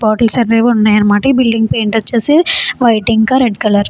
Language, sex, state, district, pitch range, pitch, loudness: Telugu, female, Andhra Pradesh, Chittoor, 215-250 Hz, 230 Hz, -11 LUFS